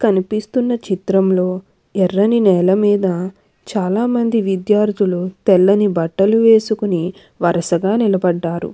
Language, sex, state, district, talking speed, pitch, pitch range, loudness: Telugu, female, Andhra Pradesh, Krishna, 75 wpm, 195 Hz, 185-210 Hz, -16 LUFS